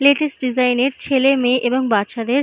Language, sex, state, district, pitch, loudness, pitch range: Bengali, female, West Bengal, Purulia, 255 Hz, -17 LUFS, 245-275 Hz